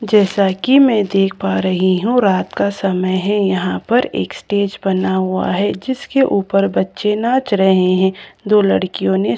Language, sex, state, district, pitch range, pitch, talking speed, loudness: Hindi, female, Bihar, Katihar, 185-210 Hz, 195 Hz, 170 wpm, -16 LUFS